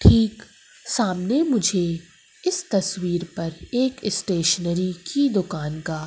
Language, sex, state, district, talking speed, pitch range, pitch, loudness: Hindi, female, Madhya Pradesh, Umaria, 110 wpm, 170-240 Hz, 185 Hz, -23 LUFS